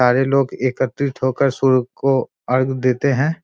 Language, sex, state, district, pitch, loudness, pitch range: Hindi, male, Bihar, Muzaffarpur, 130 Hz, -18 LUFS, 130-140 Hz